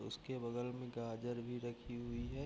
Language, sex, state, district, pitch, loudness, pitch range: Hindi, male, Bihar, Bhagalpur, 120 Hz, -45 LUFS, 120-125 Hz